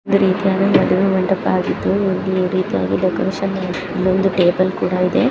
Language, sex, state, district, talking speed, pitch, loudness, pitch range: Kannada, female, Karnataka, Dharwad, 125 wpm, 190 Hz, -17 LUFS, 185-195 Hz